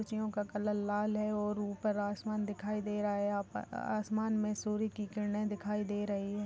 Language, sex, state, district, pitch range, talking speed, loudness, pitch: Hindi, female, Chhattisgarh, Kabirdham, 205-215 Hz, 205 wpm, -36 LUFS, 210 Hz